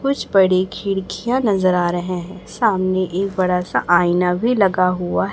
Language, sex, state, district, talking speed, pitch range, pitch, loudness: Hindi, male, Chhattisgarh, Raipur, 170 wpm, 180-195 Hz, 185 Hz, -18 LUFS